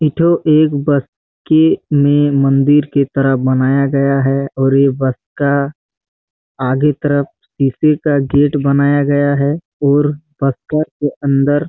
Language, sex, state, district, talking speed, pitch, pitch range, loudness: Hindi, male, Chhattisgarh, Bastar, 140 wpm, 140 Hz, 135-145 Hz, -14 LUFS